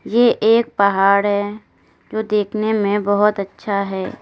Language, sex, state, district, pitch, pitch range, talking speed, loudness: Hindi, female, Uttar Pradesh, Lalitpur, 205 Hz, 200-220 Hz, 140 wpm, -17 LUFS